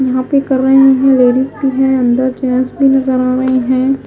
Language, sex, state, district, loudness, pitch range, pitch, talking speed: Hindi, female, Himachal Pradesh, Shimla, -12 LUFS, 255-270 Hz, 260 Hz, 220 wpm